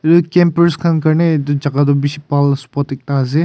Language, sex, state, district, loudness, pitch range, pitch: Nagamese, male, Nagaland, Kohima, -14 LUFS, 140-165 Hz, 145 Hz